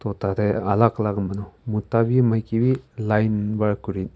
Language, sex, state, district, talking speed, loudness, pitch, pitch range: Nagamese, male, Nagaland, Kohima, 160 wpm, -22 LUFS, 105 Hz, 100-115 Hz